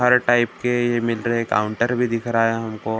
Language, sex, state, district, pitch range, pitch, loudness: Hindi, male, Maharashtra, Gondia, 115-120 Hz, 115 Hz, -20 LUFS